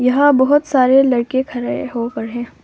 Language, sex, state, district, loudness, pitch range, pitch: Hindi, female, Arunachal Pradesh, Longding, -16 LUFS, 240-270 Hz, 255 Hz